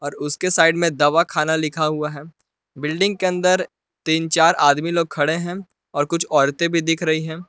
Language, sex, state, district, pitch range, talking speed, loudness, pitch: Hindi, male, Jharkhand, Palamu, 150-170 Hz, 190 wpm, -19 LUFS, 160 Hz